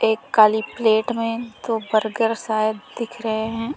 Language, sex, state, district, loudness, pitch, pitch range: Hindi, female, Uttar Pradesh, Lalitpur, -21 LUFS, 225 Hz, 220-230 Hz